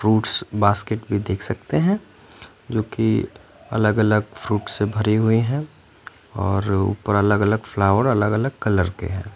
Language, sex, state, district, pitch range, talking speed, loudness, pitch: Hindi, male, Punjab, Fazilka, 100-110 Hz, 140 wpm, -21 LUFS, 105 Hz